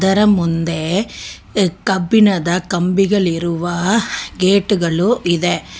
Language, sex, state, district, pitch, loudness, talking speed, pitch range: Kannada, female, Karnataka, Bangalore, 185 Hz, -16 LUFS, 70 wpm, 175-200 Hz